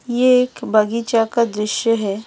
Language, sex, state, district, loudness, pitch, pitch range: Hindi, female, Delhi, New Delhi, -17 LUFS, 230 Hz, 215-240 Hz